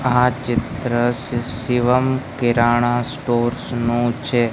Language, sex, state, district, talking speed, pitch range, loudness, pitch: Gujarati, male, Gujarat, Gandhinagar, 95 wpm, 120-125 Hz, -19 LUFS, 120 Hz